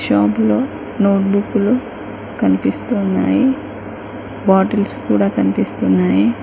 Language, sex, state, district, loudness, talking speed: Telugu, female, Telangana, Mahabubabad, -16 LUFS, 55 wpm